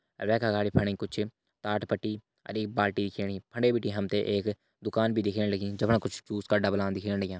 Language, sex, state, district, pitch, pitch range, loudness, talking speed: Hindi, male, Uttarakhand, Uttarkashi, 105 Hz, 100-110 Hz, -30 LUFS, 220 wpm